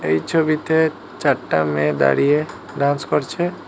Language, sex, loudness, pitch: Bengali, male, -19 LUFS, 145 Hz